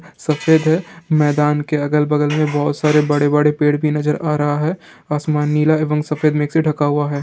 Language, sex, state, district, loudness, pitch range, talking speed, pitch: Hindi, male, Bihar, Jamui, -17 LUFS, 150-155 Hz, 215 wpm, 150 Hz